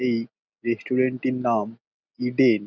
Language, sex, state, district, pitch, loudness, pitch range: Bengali, male, West Bengal, Dakshin Dinajpur, 120 Hz, -25 LUFS, 115-125 Hz